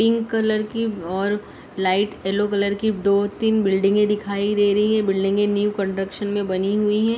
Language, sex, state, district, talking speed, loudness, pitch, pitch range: Hindi, female, Uttar Pradesh, Deoria, 185 wpm, -21 LUFS, 205 Hz, 195-215 Hz